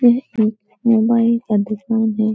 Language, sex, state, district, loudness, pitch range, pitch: Hindi, female, Uttar Pradesh, Etah, -17 LUFS, 215-235 Hz, 225 Hz